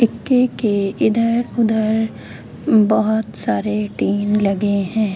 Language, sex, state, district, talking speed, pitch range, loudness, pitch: Hindi, female, Bihar, Begusarai, 95 wpm, 205-225 Hz, -18 LUFS, 215 Hz